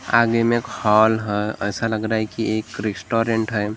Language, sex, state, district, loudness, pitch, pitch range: Hindi, male, Maharashtra, Gondia, -20 LUFS, 110 Hz, 105-115 Hz